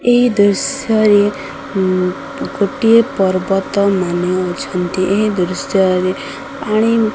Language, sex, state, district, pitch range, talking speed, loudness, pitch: Odia, female, Odisha, Sambalpur, 185-220 Hz, 85 wpm, -15 LUFS, 200 Hz